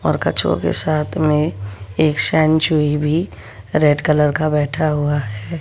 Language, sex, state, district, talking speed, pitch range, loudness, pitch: Hindi, female, Bihar, West Champaran, 140 wpm, 100-155 Hz, -17 LUFS, 150 Hz